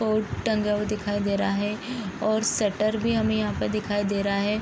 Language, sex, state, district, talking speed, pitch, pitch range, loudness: Hindi, female, Bihar, Vaishali, 235 wpm, 210 Hz, 205-215 Hz, -25 LUFS